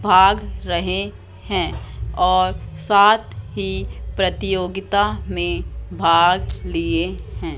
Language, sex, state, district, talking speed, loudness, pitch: Hindi, female, Madhya Pradesh, Katni, 85 wpm, -19 LUFS, 170 Hz